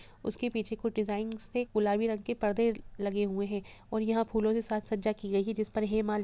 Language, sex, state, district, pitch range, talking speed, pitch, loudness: Hindi, female, Bihar, Gopalganj, 210-225 Hz, 230 wpm, 215 Hz, -32 LUFS